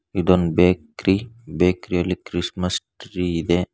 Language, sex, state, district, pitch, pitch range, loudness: Kannada, male, Karnataka, Bangalore, 90 Hz, 85-90 Hz, -21 LUFS